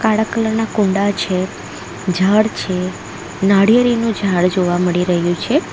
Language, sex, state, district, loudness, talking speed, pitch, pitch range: Gujarati, female, Gujarat, Valsad, -16 LUFS, 135 wpm, 195 Hz, 180-220 Hz